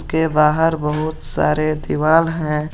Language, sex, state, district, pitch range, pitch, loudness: Hindi, male, Jharkhand, Garhwa, 150-160 Hz, 155 Hz, -18 LUFS